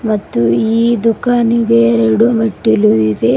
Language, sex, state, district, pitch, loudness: Kannada, female, Karnataka, Bidar, 210 Hz, -12 LUFS